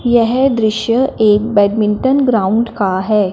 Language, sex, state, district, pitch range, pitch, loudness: Hindi, female, Punjab, Fazilka, 210-240 Hz, 220 Hz, -13 LUFS